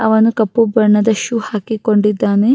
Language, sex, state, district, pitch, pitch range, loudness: Kannada, female, Karnataka, Raichur, 220 Hz, 210-225 Hz, -14 LUFS